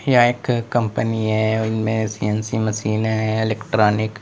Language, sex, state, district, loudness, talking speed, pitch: Hindi, male, Uttar Pradesh, Lalitpur, -20 LUFS, 140 wpm, 110 Hz